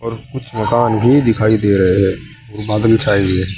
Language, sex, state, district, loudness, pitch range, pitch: Hindi, male, Uttar Pradesh, Saharanpur, -14 LUFS, 100-120 Hz, 110 Hz